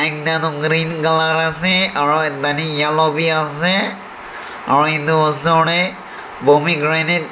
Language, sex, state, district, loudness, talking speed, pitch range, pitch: Nagamese, male, Nagaland, Dimapur, -15 LUFS, 130 wpm, 145-160 Hz, 155 Hz